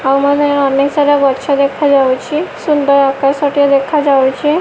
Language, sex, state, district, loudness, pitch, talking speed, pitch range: Odia, female, Odisha, Malkangiri, -12 LUFS, 280 Hz, 130 wpm, 275-290 Hz